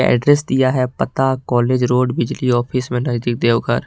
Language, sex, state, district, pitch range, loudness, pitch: Hindi, male, Jharkhand, Deoghar, 120-130 Hz, -17 LUFS, 125 Hz